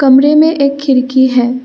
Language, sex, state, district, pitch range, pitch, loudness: Hindi, female, Assam, Kamrup Metropolitan, 255-280 Hz, 265 Hz, -10 LUFS